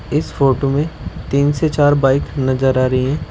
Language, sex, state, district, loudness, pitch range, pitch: Hindi, male, Uttar Pradesh, Shamli, -16 LUFS, 130-145 Hz, 135 Hz